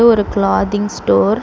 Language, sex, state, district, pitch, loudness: Tamil, female, Tamil Nadu, Chennai, 205 Hz, -15 LUFS